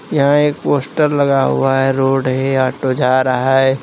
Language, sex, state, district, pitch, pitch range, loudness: Hindi, male, Uttar Pradesh, Lalitpur, 135 Hz, 130-140 Hz, -14 LUFS